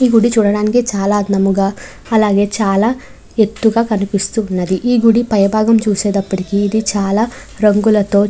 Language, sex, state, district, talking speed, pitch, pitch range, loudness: Telugu, female, Andhra Pradesh, Chittoor, 125 wpm, 210 Hz, 200-225 Hz, -14 LUFS